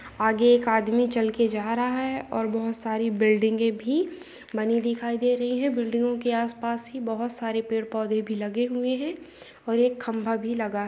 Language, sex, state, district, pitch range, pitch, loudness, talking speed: Hindi, female, Telangana, Nalgonda, 225-245 Hz, 230 Hz, -26 LUFS, 195 wpm